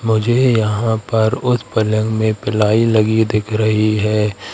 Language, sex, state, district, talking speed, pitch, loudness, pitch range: Hindi, male, Madhya Pradesh, Katni, 145 wpm, 110 Hz, -16 LUFS, 105-110 Hz